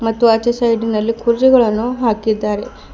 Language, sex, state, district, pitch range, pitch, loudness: Kannada, female, Karnataka, Bidar, 220-240 Hz, 230 Hz, -15 LUFS